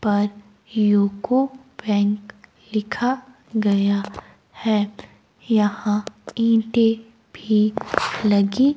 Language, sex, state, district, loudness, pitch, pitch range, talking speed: Hindi, female, Himachal Pradesh, Shimla, -21 LUFS, 215 Hz, 205-230 Hz, 70 wpm